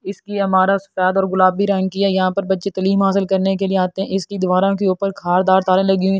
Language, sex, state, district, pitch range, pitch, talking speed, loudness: Hindi, female, Delhi, New Delhi, 190-195 Hz, 195 Hz, 260 wpm, -17 LUFS